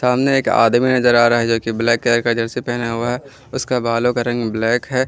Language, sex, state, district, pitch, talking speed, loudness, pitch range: Hindi, male, Jharkhand, Ranchi, 120 Hz, 260 wpm, -17 LUFS, 115-125 Hz